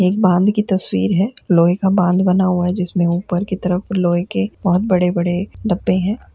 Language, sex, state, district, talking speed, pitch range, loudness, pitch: Hindi, female, Uttar Pradesh, Jalaun, 215 wpm, 175-190 Hz, -17 LUFS, 185 Hz